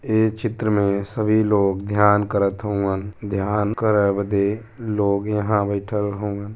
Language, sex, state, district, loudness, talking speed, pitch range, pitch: Hindi, male, Uttar Pradesh, Varanasi, -21 LUFS, 135 wpm, 100-105 Hz, 105 Hz